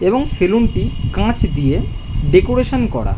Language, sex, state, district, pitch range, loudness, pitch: Bengali, male, West Bengal, Jhargram, 115-155 Hz, -17 LUFS, 125 Hz